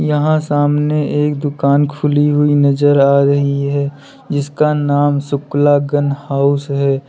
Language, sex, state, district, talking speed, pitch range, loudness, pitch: Hindi, male, Uttar Pradesh, Lalitpur, 135 wpm, 140-145 Hz, -14 LUFS, 145 Hz